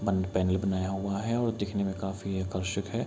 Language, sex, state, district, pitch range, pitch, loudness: Hindi, male, Bihar, Kishanganj, 95-100 Hz, 95 Hz, -30 LUFS